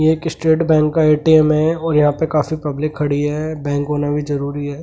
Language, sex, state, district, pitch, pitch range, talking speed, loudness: Hindi, male, Delhi, New Delhi, 150 Hz, 145-160 Hz, 235 wpm, -17 LUFS